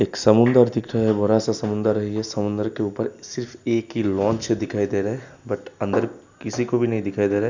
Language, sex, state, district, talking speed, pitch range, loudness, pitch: Hindi, male, Uttar Pradesh, Hamirpur, 250 wpm, 105-115 Hz, -22 LUFS, 110 Hz